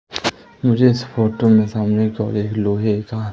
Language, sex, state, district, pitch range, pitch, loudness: Hindi, male, Madhya Pradesh, Katni, 105-115 Hz, 110 Hz, -18 LUFS